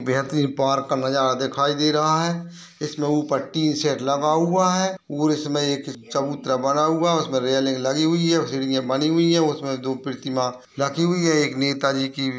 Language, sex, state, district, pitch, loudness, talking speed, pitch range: Hindi, male, Uttar Pradesh, Ghazipur, 140 Hz, -22 LUFS, 205 wpm, 135-155 Hz